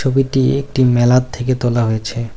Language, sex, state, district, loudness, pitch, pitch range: Bengali, male, West Bengal, Cooch Behar, -15 LUFS, 125 Hz, 120-130 Hz